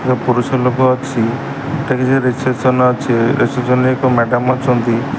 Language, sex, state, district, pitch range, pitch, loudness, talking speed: Odia, male, Odisha, Sambalpur, 125-130 Hz, 125 Hz, -15 LUFS, 140 wpm